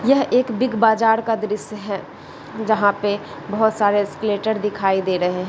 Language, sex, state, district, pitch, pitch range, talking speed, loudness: Hindi, female, Chhattisgarh, Bilaspur, 210 Hz, 200-220 Hz, 175 wpm, -20 LUFS